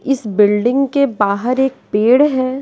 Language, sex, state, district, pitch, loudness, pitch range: Hindi, female, Bihar, West Champaran, 255 Hz, -15 LUFS, 210-270 Hz